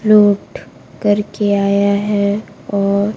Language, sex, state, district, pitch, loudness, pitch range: Hindi, female, Bihar, Kaimur, 205 Hz, -15 LUFS, 200-210 Hz